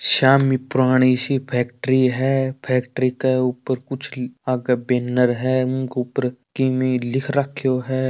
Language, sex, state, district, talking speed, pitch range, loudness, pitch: Marwari, male, Rajasthan, Churu, 135 wpm, 125-130 Hz, -20 LUFS, 130 Hz